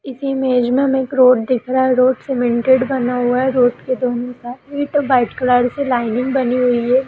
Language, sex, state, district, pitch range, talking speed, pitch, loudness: Hindi, female, Uttarakhand, Uttarkashi, 245-265 Hz, 210 wpm, 255 Hz, -16 LUFS